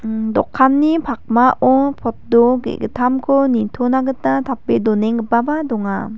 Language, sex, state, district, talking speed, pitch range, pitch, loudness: Garo, female, Meghalaya, West Garo Hills, 95 wpm, 225-265 Hz, 245 Hz, -16 LUFS